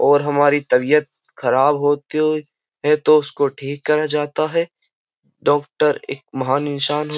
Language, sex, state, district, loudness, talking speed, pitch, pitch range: Hindi, male, Uttar Pradesh, Jyotiba Phule Nagar, -18 LUFS, 140 wpm, 145 Hz, 145-150 Hz